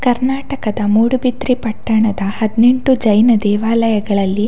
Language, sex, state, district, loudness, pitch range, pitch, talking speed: Kannada, female, Karnataka, Dakshina Kannada, -14 LUFS, 210-250 Hz, 225 Hz, 80 wpm